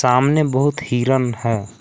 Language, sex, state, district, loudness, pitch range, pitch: Hindi, male, Jharkhand, Palamu, -18 LUFS, 120-145 Hz, 125 Hz